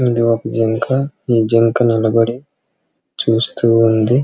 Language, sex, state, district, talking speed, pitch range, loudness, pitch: Telugu, male, Andhra Pradesh, Srikakulam, 125 wpm, 115-120 Hz, -15 LUFS, 115 Hz